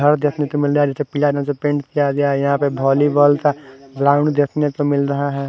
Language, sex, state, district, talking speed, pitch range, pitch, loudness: Hindi, male, Haryana, Charkhi Dadri, 250 wpm, 140-145 Hz, 145 Hz, -17 LUFS